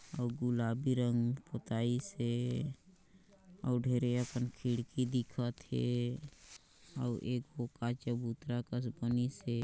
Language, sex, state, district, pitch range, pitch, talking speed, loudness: Chhattisgarhi, male, Chhattisgarh, Sarguja, 120-125 Hz, 120 Hz, 100 wpm, -37 LUFS